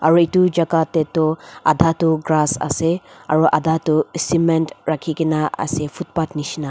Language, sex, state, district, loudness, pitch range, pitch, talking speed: Nagamese, female, Nagaland, Dimapur, -19 LUFS, 155-165 Hz, 160 Hz, 160 wpm